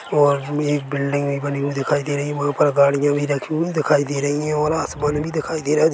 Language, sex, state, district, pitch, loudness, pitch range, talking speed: Hindi, male, Chhattisgarh, Korba, 145 Hz, -20 LUFS, 140-150 Hz, 280 wpm